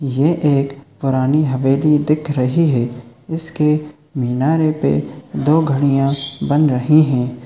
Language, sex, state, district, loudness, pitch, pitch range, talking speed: Hindi, male, Chhattisgarh, Raigarh, -16 LUFS, 140 Hz, 130-150 Hz, 120 wpm